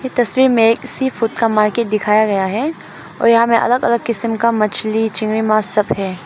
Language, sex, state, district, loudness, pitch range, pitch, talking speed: Hindi, female, Arunachal Pradesh, Papum Pare, -15 LUFS, 215-235 Hz, 225 Hz, 210 wpm